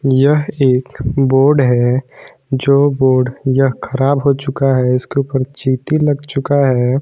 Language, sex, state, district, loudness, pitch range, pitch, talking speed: Hindi, male, Jharkhand, Garhwa, -14 LUFS, 130-140 Hz, 135 Hz, 145 wpm